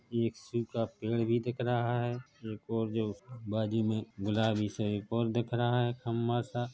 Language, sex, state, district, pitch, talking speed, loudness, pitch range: Hindi, male, Chhattisgarh, Bilaspur, 115 Hz, 195 wpm, -33 LUFS, 110-120 Hz